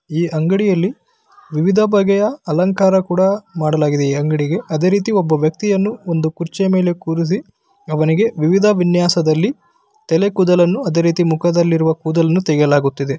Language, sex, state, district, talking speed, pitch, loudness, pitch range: Kannada, male, Karnataka, Bellary, 120 wpm, 175 Hz, -16 LUFS, 160-200 Hz